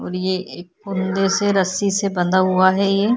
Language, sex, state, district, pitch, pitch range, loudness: Hindi, female, Chhattisgarh, Kabirdham, 190 Hz, 185-200 Hz, -19 LUFS